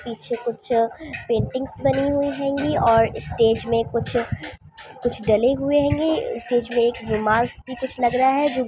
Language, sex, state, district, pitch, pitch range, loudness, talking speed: Hindi, female, Andhra Pradesh, Anantapur, 245 Hz, 230-270 Hz, -21 LUFS, 175 wpm